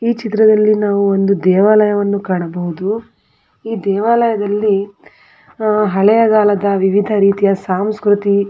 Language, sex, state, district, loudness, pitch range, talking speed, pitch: Kannada, female, Karnataka, Belgaum, -14 LUFS, 195-215 Hz, 90 wpm, 205 Hz